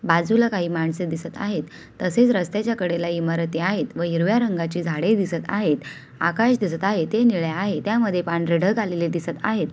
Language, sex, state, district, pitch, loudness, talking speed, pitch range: Marathi, female, Maharashtra, Sindhudurg, 175 Hz, -22 LUFS, 175 wpm, 165-215 Hz